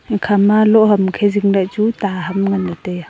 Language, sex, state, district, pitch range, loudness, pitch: Wancho, female, Arunachal Pradesh, Longding, 190-210 Hz, -15 LUFS, 200 Hz